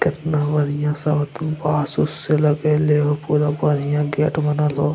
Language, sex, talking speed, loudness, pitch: Angika, male, 170 wpm, -20 LUFS, 150 Hz